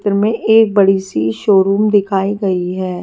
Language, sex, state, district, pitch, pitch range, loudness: Hindi, female, Delhi, New Delhi, 195 Hz, 185-205 Hz, -14 LUFS